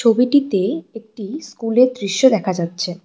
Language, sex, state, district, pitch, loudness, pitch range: Bengali, female, West Bengal, Cooch Behar, 225 Hz, -17 LUFS, 190-250 Hz